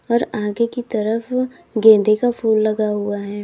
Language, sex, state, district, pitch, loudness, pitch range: Hindi, female, Uttar Pradesh, Lalitpur, 220 Hz, -18 LUFS, 210-235 Hz